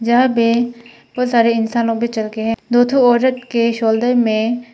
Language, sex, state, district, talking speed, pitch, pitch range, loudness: Hindi, female, Arunachal Pradesh, Papum Pare, 175 wpm, 235 Hz, 230-245 Hz, -16 LUFS